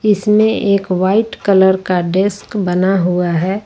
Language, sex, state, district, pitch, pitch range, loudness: Hindi, female, Jharkhand, Ranchi, 190 Hz, 185-205 Hz, -14 LUFS